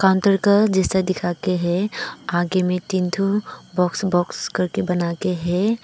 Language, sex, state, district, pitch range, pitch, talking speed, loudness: Hindi, female, Arunachal Pradesh, Papum Pare, 180-195 Hz, 185 Hz, 135 wpm, -21 LUFS